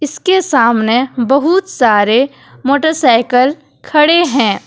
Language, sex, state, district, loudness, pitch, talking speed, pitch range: Hindi, female, Jharkhand, Deoghar, -12 LUFS, 275 Hz, 90 wpm, 240-315 Hz